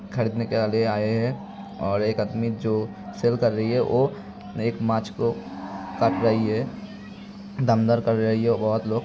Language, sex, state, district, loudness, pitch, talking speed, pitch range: Hindi, male, Uttar Pradesh, Hamirpur, -24 LUFS, 115 Hz, 170 wpm, 110-125 Hz